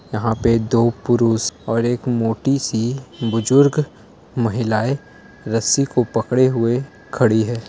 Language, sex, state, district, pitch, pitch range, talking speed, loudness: Hindi, male, Jharkhand, Jamtara, 115 Hz, 115-130 Hz, 125 wpm, -18 LUFS